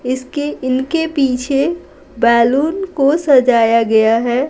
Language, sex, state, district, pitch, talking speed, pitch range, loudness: Hindi, female, Bihar, Patna, 265 Hz, 105 wpm, 240-290 Hz, -14 LUFS